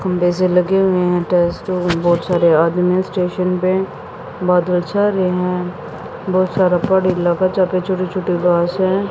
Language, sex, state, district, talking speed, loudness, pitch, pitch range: Hindi, female, Haryana, Jhajjar, 140 wpm, -16 LUFS, 180 Hz, 175-185 Hz